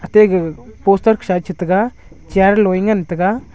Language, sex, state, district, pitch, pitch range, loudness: Wancho, male, Arunachal Pradesh, Longding, 195 Hz, 185-210 Hz, -15 LUFS